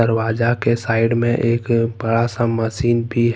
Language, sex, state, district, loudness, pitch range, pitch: Hindi, male, Jharkhand, Ranchi, -18 LUFS, 115-120 Hz, 115 Hz